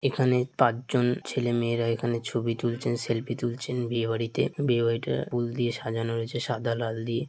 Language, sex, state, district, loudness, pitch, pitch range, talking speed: Bengali, male, West Bengal, Dakshin Dinajpur, -28 LUFS, 120 Hz, 115-125 Hz, 180 wpm